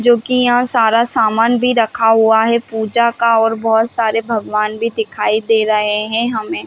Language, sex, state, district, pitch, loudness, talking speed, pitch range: Hindi, female, Chhattisgarh, Bilaspur, 225 Hz, -14 LUFS, 190 wpm, 220-235 Hz